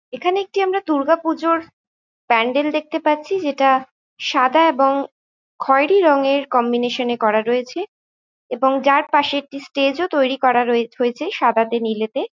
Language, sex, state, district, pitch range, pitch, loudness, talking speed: Bengali, female, West Bengal, Jhargram, 250-320 Hz, 275 Hz, -18 LUFS, 135 wpm